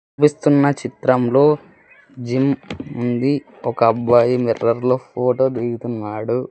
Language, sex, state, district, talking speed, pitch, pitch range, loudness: Telugu, male, Andhra Pradesh, Sri Satya Sai, 85 wpm, 125 Hz, 120-140 Hz, -18 LUFS